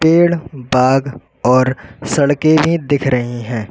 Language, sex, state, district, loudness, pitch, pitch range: Hindi, male, Uttar Pradesh, Lucknow, -15 LUFS, 135 Hz, 125-155 Hz